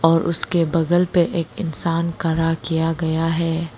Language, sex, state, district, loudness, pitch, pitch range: Hindi, female, Arunachal Pradesh, Lower Dibang Valley, -20 LUFS, 165 Hz, 165-170 Hz